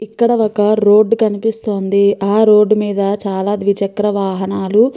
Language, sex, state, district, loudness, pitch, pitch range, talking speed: Telugu, female, Andhra Pradesh, Chittoor, -14 LUFS, 205 Hz, 200-215 Hz, 135 wpm